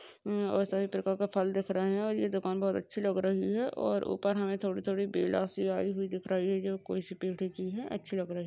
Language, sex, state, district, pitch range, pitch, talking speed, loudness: Hindi, female, Chhattisgarh, Jashpur, 190-200 Hz, 195 Hz, 260 wpm, -33 LUFS